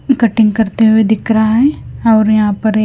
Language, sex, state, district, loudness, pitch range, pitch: Hindi, female, Himachal Pradesh, Shimla, -12 LUFS, 215-225 Hz, 220 Hz